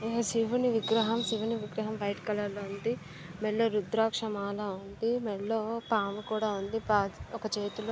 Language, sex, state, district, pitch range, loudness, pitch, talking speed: Telugu, female, Andhra Pradesh, Srikakulam, 205-225 Hz, -32 LUFS, 215 Hz, 150 wpm